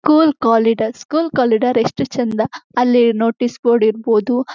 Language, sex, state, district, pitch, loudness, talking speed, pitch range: Kannada, female, Karnataka, Shimoga, 240 Hz, -16 LUFS, 130 wpm, 225-255 Hz